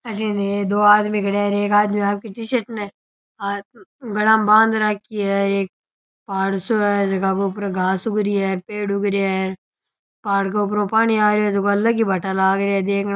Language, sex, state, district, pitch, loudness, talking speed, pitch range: Rajasthani, male, Rajasthan, Churu, 205 Hz, -19 LUFS, 210 wpm, 195-210 Hz